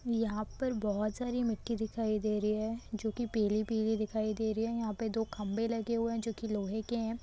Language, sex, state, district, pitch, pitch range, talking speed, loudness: Maithili, female, Bihar, Supaul, 220 Hz, 215-230 Hz, 240 wpm, -34 LUFS